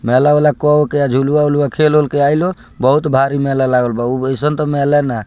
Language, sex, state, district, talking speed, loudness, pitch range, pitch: Bhojpuri, male, Bihar, Muzaffarpur, 205 wpm, -14 LUFS, 130-150 Hz, 145 Hz